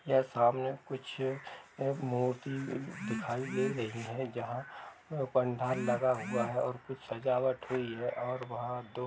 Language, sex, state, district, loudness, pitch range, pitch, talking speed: Hindi, male, Uttar Pradesh, Jalaun, -35 LUFS, 120-130 Hz, 125 Hz, 145 wpm